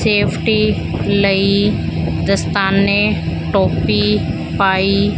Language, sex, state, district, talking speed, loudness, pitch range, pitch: Punjabi, female, Punjab, Fazilka, 60 wpm, -15 LUFS, 190-200 Hz, 195 Hz